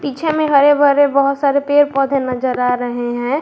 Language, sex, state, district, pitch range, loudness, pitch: Hindi, female, Jharkhand, Garhwa, 255-285 Hz, -15 LUFS, 280 Hz